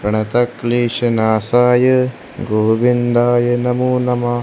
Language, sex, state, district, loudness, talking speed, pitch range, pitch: Hindi, male, Maharashtra, Gondia, -15 LUFS, 70 wpm, 115-125 Hz, 120 Hz